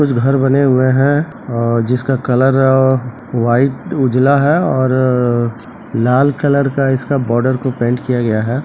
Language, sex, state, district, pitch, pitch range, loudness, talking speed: Hindi, male, Bihar, Begusarai, 130 Hz, 125-135 Hz, -14 LUFS, 155 wpm